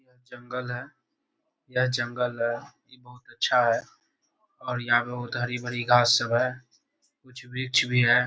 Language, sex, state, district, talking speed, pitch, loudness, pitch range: Hindi, male, Bihar, Saharsa, 140 wpm, 125 Hz, -26 LUFS, 120-130 Hz